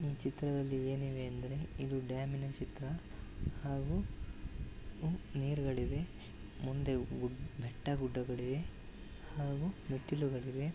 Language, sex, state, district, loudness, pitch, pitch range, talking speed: Kannada, male, Karnataka, Bellary, -40 LUFS, 135 Hz, 130-145 Hz, 85 wpm